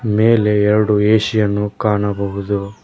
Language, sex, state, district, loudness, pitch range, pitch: Kannada, male, Karnataka, Koppal, -16 LUFS, 100-110 Hz, 105 Hz